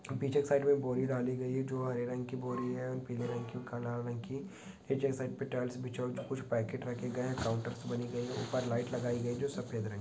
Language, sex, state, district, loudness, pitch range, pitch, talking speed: Hindi, male, Bihar, Sitamarhi, -36 LUFS, 120-130 Hz, 125 Hz, 275 wpm